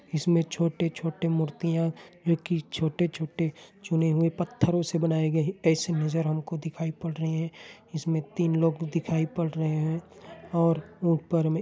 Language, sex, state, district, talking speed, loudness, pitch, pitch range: Hindi, male, Chhattisgarh, Bilaspur, 190 wpm, -28 LUFS, 165 Hz, 160-170 Hz